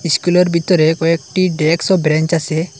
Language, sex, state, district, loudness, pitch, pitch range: Bengali, male, Assam, Hailakandi, -14 LUFS, 165 Hz, 155-175 Hz